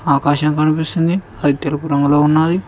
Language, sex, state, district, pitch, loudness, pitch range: Telugu, male, Telangana, Mahabubabad, 150 Hz, -16 LUFS, 145-160 Hz